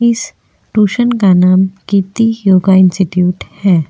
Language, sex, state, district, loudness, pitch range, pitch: Hindi, female, Maharashtra, Aurangabad, -11 LUFS, 185-220 Hz, 190 Hz